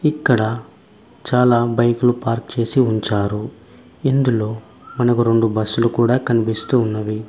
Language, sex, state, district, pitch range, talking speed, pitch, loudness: Telugu, male, Telangana, Mahabubabad, 110-125 Hz, 125 wpm, 115 Hz, -18 LUFS